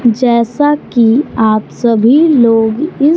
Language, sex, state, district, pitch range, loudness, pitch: Hindi, male, Bihar, Kaimur, 225-290 Hz, -11 LUFS, 240 Hz